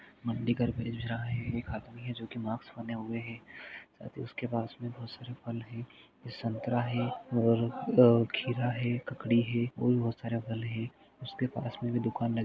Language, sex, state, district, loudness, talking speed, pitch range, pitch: Hindi, male, Jharkhand, Jamtara, -32 LUFS, 165 wpm, 115-120 Hz, 120 Hz